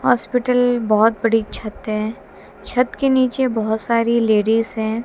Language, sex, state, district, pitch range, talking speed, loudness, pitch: Hindi, female, Haryana, Jhajjar, 220-250 Hz, 145 wpm, -18 LUFS, 230 Hz